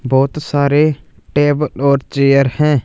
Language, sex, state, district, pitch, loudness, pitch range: Hindi, male, Punjab, Fazilka, 140 Hz, -14 LUFS, 140-150 Hz